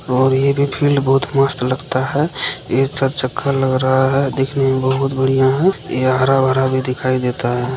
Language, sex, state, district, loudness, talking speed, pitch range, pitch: Hindi, male, Bihar, Supaul, -16 LUFS, 195 wpm, 130-135 Hz, 135 Hz